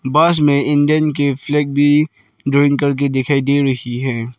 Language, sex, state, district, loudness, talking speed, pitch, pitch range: Hindi, male, Arunachal Pradesh, Lower Dibang Valley, -15 LUFS, 165 wpm, 140 Hz, 135-145 Hz